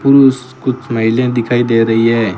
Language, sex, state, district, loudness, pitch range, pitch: Hindi, male, Rajasthan, Bikaner, -13 LUFS, 115-130 Hz, 120 Hz